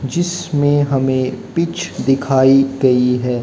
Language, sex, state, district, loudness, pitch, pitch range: Hindi, male, Haryana, Jhajjar, -16 LUFS, 135 Hz, 130-145 Hz